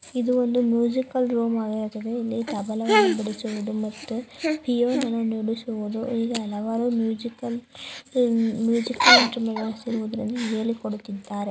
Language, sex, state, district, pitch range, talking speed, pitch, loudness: Kannada, female, Karnataka, Mysore, 220-240 Hz, 80 wpm, 230 Hz, -24 LUFS